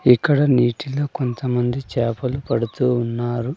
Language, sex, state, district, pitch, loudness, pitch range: Telugu, male, Andhra Pradesh, Sri Satya Sai, 125 Hz, -20 LUFS, 120-135 Hz